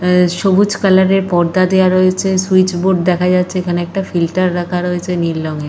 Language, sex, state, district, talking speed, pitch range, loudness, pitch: Bengali, female, Jharkhand, Jamtara, 180 wpm, 175-190 Hz, -14 LUFS, 180 Hz